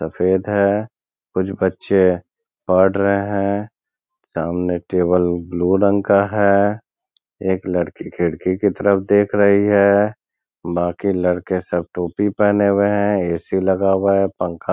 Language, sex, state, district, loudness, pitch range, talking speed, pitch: Hindi, male, Bihar, Gaya, -18 LUFS, 90-100 Hz, 140 wpm, 95 Hz